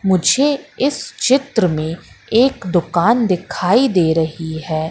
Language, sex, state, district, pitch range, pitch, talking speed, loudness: Hindi, female, Madhya Pradesh, Katni, 165-250 Hz, 185 Hz, 120 wpm, -16 LUFS